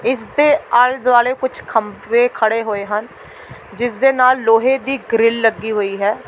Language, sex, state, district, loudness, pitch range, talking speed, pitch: Punjabi, female, Delhi, New Delhi, -16 LUFS, 220-255 Hz, 165 wpm, 235 Hz